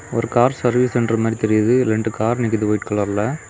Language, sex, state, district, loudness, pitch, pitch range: Tamil, male, Tamil Nadu, Kanyakumari, -18 LUFS, 115 Hz, 110-120 Hz